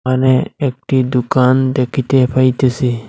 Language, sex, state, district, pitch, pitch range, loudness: Bengali, male, Assam, Hailakandi, 130 Hz, 125-130 Hz, -14 LUFS